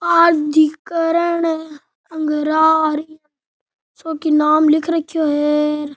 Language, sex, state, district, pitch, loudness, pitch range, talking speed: Rajasthani, male, Rajasthan, Nagaur, 315 Hz, -16 LUFS, 300-330 Hz, 80 wpm